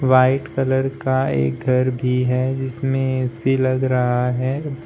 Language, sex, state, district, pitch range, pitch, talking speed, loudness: Hindi, male, Uttar Pradesh, Shamli, 125-135 Hz, 130 Hz, 150 wpm, -20 LUFS